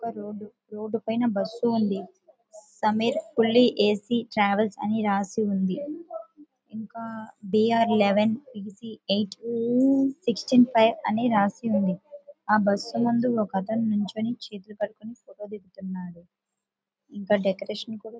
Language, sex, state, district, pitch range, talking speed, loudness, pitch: Telugu, female, Andhra Pradesh, Visakhapatnam, 205-235 Hz, 125 wpm, -25 LUFS, 220 Hz